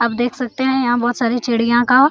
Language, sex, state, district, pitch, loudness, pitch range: Hindi, female, Jharkhand, Sahebganj, 245 Hz, -17 LUFS, 240-250 Hz